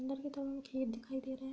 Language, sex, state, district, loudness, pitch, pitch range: Hindi, female, Uttar Pradesh, Deoria, -41 LUFS, 265 Hz, 265-275 Hz